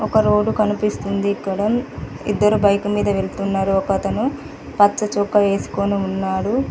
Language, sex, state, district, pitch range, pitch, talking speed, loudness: Telugu, female, Telangana, Mahabubabad, 195-210 Hz, 205 Hz, 115 wpm, -19 LUFS